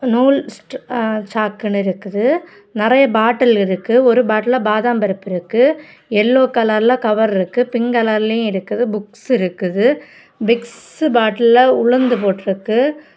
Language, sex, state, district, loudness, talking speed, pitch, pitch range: Tamil, female, Tamil Nadu, Kanyakumari, -15 LUFS, 115 wpm, 230 Hz, 210-250 Hz